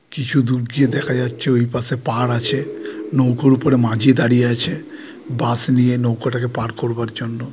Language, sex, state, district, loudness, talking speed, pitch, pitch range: Bengali, male, West Bengal, Purulia, -18 LUFS, 160 wpm, 125 Hz, 120-135 Hz